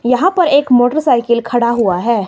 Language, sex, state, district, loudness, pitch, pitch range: Hindi, female, Himachal Pradesh, Shimla, -13 LUFS, 245 Hz, 235-285 Hz